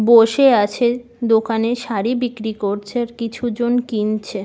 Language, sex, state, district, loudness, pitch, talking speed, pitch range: Bengali, female, West Bengal, Malda, -18 LUFS, 230 Hz, 135 wpm, 215-240 Hz